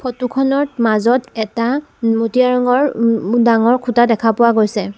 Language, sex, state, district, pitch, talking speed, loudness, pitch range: Assamese, female, Assam, Sonitpur, 235 Hz, 155 wpm, -15 LUFS, 225-255 Hz